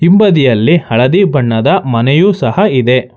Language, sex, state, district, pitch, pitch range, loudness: Kannada, male, Karnataka, Bangalore, 130 Hz, 120-175 Hz, -10 LUFS